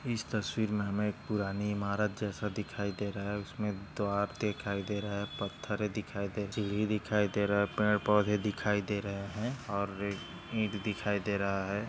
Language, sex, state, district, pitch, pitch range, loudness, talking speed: Hindi, male, Maharashtra, Sindhudurg, 105 Hz, 100-105 Hz, -34 LUFS, 190 wpm